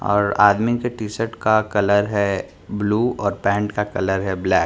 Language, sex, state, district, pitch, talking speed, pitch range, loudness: Hindi, male, Bihar, Patna, 105 Hz, 195 wpm, 100-110 Hz, -20 LUFS